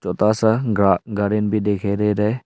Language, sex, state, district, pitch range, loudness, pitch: Hindi, male, Arunachal Pradesh, Longding, 100-110 Hz, -19 LUFS, 105 Hz